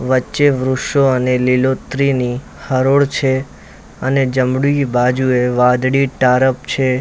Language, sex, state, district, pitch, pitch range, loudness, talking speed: Gujarati, male, Gujarat, Valsad, 130 Hz, 125-135 Hz, -15 LUFS, 105 wpm